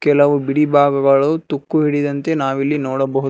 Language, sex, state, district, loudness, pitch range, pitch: Kannada, male, Karnataka, Bangalore, -16 LUFS, 135-150 Hz, 145 Hz